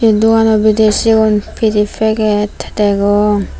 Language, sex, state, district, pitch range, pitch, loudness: Chakma, female, Tripura, Unakoti, 210-220 Hz, 215 Hz, -12 LUFS